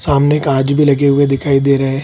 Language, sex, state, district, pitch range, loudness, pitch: Hindi, male, Bihar, Kishanganj, 135-145 Hz, -13 LUFS, 140 Hz